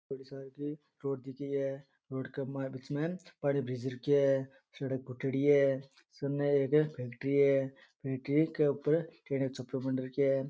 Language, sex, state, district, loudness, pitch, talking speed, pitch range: Rajasthani, male, Rajasthan, Nagaur, -33 LUFS, 135 Hz, 175 wpm, 135-145 Hz